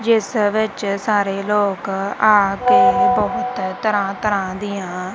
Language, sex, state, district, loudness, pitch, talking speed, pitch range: Punjabi, female, Punjab, Kapurthala, -18 LUFS, 205 Hz, 115 wpm, 195-220 Hz